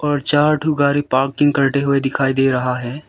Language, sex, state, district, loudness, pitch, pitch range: Hindi, male, Arunachal Pradesh, Lower Dibang Valley, -17 LUFS, 140 Hz, 135-145 Hz